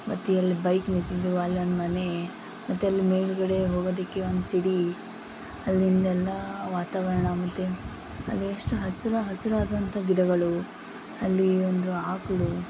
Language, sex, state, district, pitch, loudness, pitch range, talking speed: Kannada, female, Karnataka, Gulbarga, 185 Hz, -27 LUFS, 180-190 Hz, 125 wpm